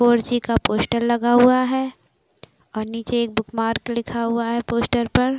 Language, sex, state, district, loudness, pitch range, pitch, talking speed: Hindi, female, Chhattisgarh, Bastar, -20 LUFS, 230-240 Hz, 235 Hz, 200 wpm